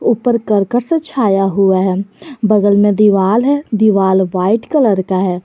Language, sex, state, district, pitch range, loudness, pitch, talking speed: Hindi, female, Jharkhand, Garhwa, 190-235 Hz, -13 LUFS, 205 Hz, 165 wpm